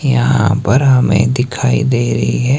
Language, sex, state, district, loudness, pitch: Hindi, male, Himachal Pradesh, Shimla, -13 LUFS, 125 Hz